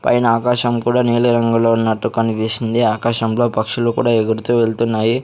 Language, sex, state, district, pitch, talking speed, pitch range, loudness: Telugu, male, Andhra Pradesh, Sri Satya Sai, 115 Hz, 135 wpm, 115-120 Hz, -16 LUFS